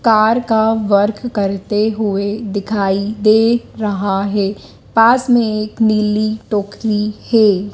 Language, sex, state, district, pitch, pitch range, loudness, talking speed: Hindi, female, Madhya Pradesh, Dhar, 215 Hz, 205-220 Hz, -15 LUFS, 115 wpm